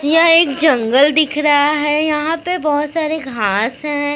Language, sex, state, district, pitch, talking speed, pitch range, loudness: Hindi, female, Maharashtra, Mumbai Suburban, 300 Hz, 200 wpm, 290-310 Hz, -15 LUFS